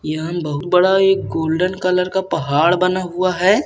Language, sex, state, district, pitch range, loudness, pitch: Hindi, male, Andhra Pradesh, Visakhapatnam, 160-185 Hz, -17 LUFS, 180 Hz